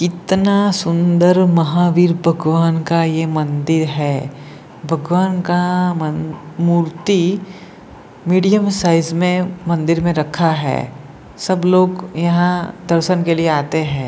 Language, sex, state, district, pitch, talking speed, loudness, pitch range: Hindi, male, Jharkhand, Jamtara, 170 Hz, 115 wpm, -16 LUFS, 160-180 Hz